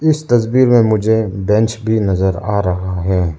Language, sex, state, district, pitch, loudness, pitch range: Hindi, male, Arunachal Pradesh, Lower Dibang Valley, 105 Hz, -15 LUFS, 95-115 Hz